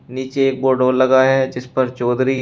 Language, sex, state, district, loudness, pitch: Hindi, male, Uttar Pradesh, Shamli, -16 LUFS, 130 Hz